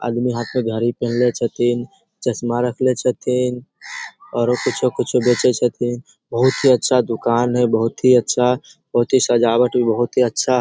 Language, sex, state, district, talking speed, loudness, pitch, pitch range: Maithili, male, Bihar, Samastipur, 165 wpm, -18 LUFS, 120 Hz, 120-125 Hz